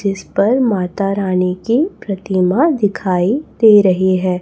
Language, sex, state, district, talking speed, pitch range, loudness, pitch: Hindi, female, Chhattisgarh, Raipur, 135 wpm, 185-225 Hz, -15 LUFS, 195 Hz